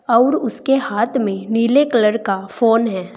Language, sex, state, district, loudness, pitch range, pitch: Hindi, female, Uttar Pradesh, Saharanpur, -17 LUFS, 205-260 Hz, 230 Hz